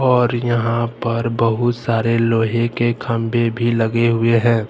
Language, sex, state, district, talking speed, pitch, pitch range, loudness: Hindi, male, Jharkhand, Deoghar, 155 wpm, 115 Hz, 115-120 Hz, -18 LUFS